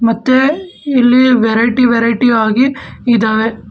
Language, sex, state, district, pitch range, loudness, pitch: Kannada, male, Karnataka, Bangalore, 230-260 Hz, -12 LUFS, 240 Hz